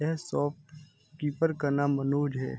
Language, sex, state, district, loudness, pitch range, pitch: Hindi, male, Uttar Pradesh, Jalaun, -30 LUFS, 140-150 Hz, 145 Hz